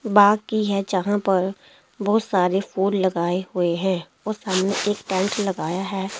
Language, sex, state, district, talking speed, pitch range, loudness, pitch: Hindi, female, Delhi, New Delhi, 165 wpm, 185-205 Hz, -22 LUFS, 195 Hz